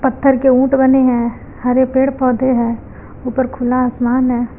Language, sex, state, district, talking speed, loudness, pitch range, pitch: Hindi, female, Uttar Pradesh, Lucknow, 170 wpm, -14 LUFS, 245-265 Hz, 255 Hz